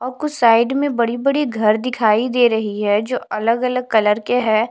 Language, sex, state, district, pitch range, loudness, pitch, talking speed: Hindi, female, Delhi, New Delhi, 220-250 Hz, -17 LUFS, 235 Hz, 190 wpm